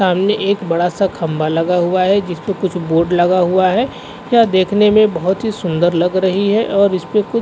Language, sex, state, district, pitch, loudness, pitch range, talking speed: Hindi, male, Uttar Pradesh, Varanasi, 185 Hz, -15 LUFS, 175-205 Hz, 225 wpm